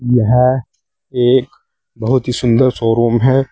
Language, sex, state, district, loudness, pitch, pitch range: Hindi, male, Uttar Pradesh, Saharanpur, -14 LUFS, 125 Hz, 120-130 Hz